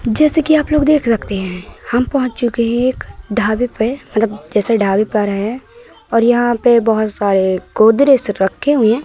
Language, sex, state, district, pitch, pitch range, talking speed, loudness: Hindi, female, Madhya Pradesh, Katni, 230 Hz, 210-255 Hz, 190 wpm, -15 LUFS